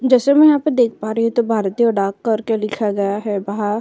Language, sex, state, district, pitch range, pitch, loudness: Hindi, female, Uttar Pradesh, Jyotiba Phule Nagar, 205-240 Hz, 220 Hz, -17 LUFS